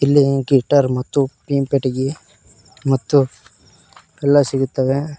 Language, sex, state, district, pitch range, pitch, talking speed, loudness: Kannada, male, Karnataka, Koppal, 130-140 Hz, 135 Hz, 90 wpm, -18 LUFS